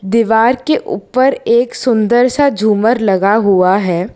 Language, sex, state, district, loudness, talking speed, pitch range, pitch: Hindi, female, Gujarat, Valsad, -12 LUFS, 145 wpm, 200-250 Hz, 225 Hz